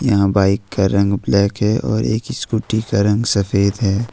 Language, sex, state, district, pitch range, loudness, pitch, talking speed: Hindi, male, Jharkhand, Ranchi, 100-110 Hz, -17 LUFS, 100 Hz, 190 wpm